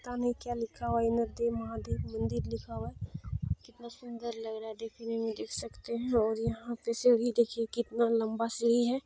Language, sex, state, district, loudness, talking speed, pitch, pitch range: Hindi, female, Bihar, Lakhisarai, -33 LUFS, 205 wpm, 230 Hz, 220-235 Hz